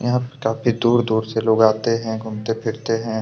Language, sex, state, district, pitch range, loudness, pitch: Hindi, male, Chhattisgarh, Kabirdham, 110-115 Hz, -20 LUFS, 115 Hz